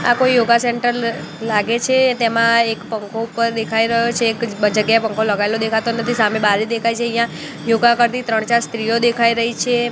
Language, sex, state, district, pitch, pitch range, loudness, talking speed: Gujarati, female, Gujarat, Gandhinagar, 230 Hz, 220-235 Hz, -17 LUFS, 200 wpm